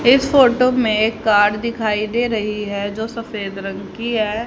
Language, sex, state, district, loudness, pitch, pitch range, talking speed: Hindi, female, Haryana, Rohtak, -18 LUFS, 220 Hz, 210-235 Hz, 190 wpm